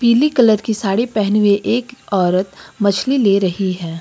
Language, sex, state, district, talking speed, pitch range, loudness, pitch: Hindi, female, Uttar Pradesh, Lucknow, 180 wpm, 195-235 Hz, -16 LUFS, 205 Hz